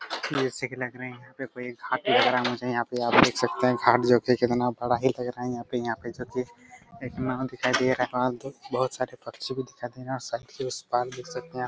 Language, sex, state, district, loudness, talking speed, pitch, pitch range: Hindi, male, Chhattisgarh, Raigarh, -27 LUFS, 240 wpm, 125 Hz, 125-130 Hz